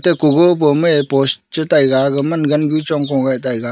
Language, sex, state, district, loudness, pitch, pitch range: Wancho, male, Arunachal Pradesh, Longding, -15 LUFS, 145 Hz, 135-160 Hz